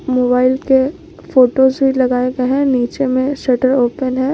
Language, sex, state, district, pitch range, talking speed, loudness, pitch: Hindi, female, Jharkhand, Garhwa, 255-270 Hz, 165 wpm, -14 LUFS, 260 Hz